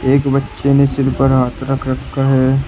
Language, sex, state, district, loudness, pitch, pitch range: Hindi, male, Uttar Pradesh, Shamli, -15 LUFS, 135 Hz, 130-135 Hz